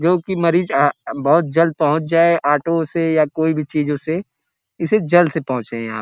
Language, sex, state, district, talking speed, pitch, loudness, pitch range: Hindi, male, Uttar Pradesh, Gorakhpur, 210 wpm, 160 Hz, -17 LUFS, 150-170 Hz